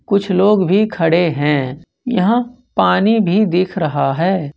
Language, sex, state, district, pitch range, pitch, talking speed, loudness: Hindi, male, Jharkhand, Ranchi, 165-210 Hz, 185 Hz, 145 wpm, -15 LUFS